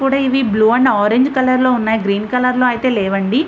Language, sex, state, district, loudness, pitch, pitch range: Telugu, female, Andhra Pradesh, Visakhapatnam, -14 LUFS, 250 Hz, 215-260 Hz